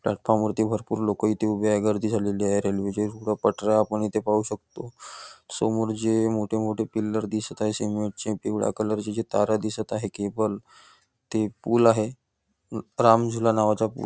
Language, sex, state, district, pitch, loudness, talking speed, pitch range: Marathi, male, Maharashtra, Nagpur, 110 Hz, -25 LUFS, 170 wpm, 105-110 Hz